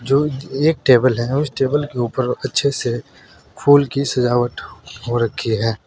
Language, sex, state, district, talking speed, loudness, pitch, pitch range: Hindi, male, Uttar Pradesh, Saharanpur, 165 wpm, -18 LUFS, 130 Hz, 120-140 Hz